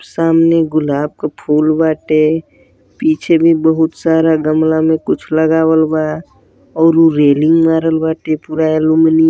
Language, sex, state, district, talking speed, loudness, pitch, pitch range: Bhojpuri, male, Uttar Pradesh, Deoria, 115 wpm, -13 LUFS, 160 Hz, 155-160 Hz